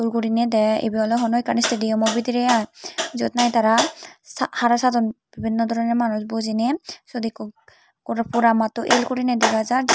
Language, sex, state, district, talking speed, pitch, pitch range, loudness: Chakma, female, Tripura, Unakoti, 155 wpm, 230 Hz, 225-245 Hz, -21 LUFS